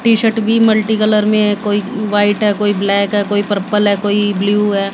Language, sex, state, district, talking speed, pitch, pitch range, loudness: Hindi, female, Haryana, Jhajjar, 205 wpm, 205 Hz, 205-215 Hz, -14 LUFS